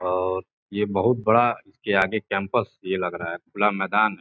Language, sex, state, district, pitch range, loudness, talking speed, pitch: Hindi, male, Uttar Pradesh, Gorakhpur, 95-110 Hz, -24 LUFS, 185 wpm, 100 Hz